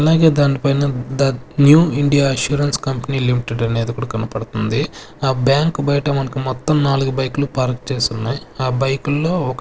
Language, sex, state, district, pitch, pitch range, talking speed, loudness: Telugu, male, Andhra Pradesh, Sri Satya Sai, 135 Hz, 125-145 Hz, 150 wpm, -17 LUFS